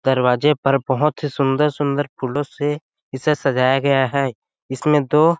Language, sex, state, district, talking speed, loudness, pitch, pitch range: Hindi, male, Chhattisgarh, Sarguja, 155 wpm, -19 LUFS, 140 Hz, 130-150 Hz